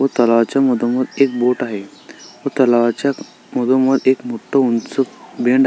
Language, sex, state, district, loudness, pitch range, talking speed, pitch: Marathi, male, Maharashtra, Sindhudurg, -17 LUFS, 120-135 Hz, 150 wpm, 125 Hz